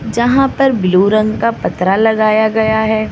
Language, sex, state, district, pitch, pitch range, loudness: Hindi, female, Maharashtra, Mumbai Suburban, 220 Hz, 215-230 Hz, -13 LUFS